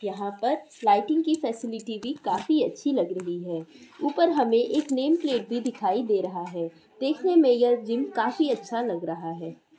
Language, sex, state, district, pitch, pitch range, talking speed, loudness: Hindi, female, Bihar, Purnia, 240 Hz, 200-285 Hz, 185 wpm, -26 LUFS